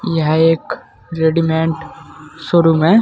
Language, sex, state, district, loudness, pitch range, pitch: Hindi, male, Uttar Pradesh, Saharanpur, -15 LUFS, 160-165 Hz, 160 Hz